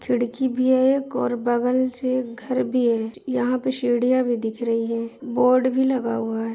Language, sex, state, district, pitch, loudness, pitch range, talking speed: Hindi, male, Jharkhand, Sahebganj, 250 Hz, -22 LUFS, 235-255 Hz, 175 wpm